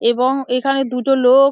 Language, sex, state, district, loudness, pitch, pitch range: Bengali, female, West Bengal, Dakshin Dinajpur, -16 LUFS, 260 Hz, 250-270 Hz